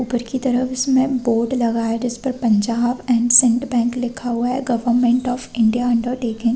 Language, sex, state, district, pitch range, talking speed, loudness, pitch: Hindi, female, Chhattisgarh, Rajnandgaon, 235-250 Hz, 185 wpm, -18 LUFS, 245 Hz